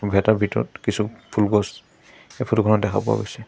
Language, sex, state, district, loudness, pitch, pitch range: Assamese, male, Assam, Sonitpur, -22 LUFS, 105 Hz, 105-110 Hz